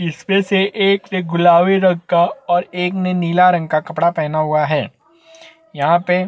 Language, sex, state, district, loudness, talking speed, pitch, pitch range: Hindi, male, Chhattisgarh, Bastar, -16 LUFS, 190 wpm, 180 Hz, 170-195 Hz